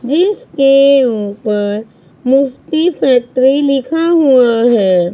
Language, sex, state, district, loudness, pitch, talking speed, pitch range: Hindi, female, Punjab, Pathankot, -12 LUFS, 265 Hz, 80 wpm, 230-280 Hz